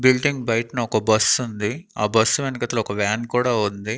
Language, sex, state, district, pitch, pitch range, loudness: Telugu, male, Andhra Pradesh, Annamaya, 115 Hz, 110-125 Hz, -21 LUFS